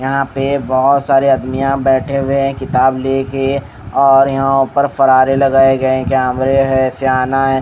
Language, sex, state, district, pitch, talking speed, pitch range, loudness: Hindi, male, Haryana, Rohtak, 135 Hz, 175 wpm, 130-135 Hz, -13 LUFS